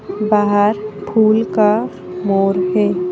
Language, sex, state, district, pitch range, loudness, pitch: Hindi, female, Madhya Pradesh, Bhopal, 195-215 Hz, -16 LUFS, 205 Hz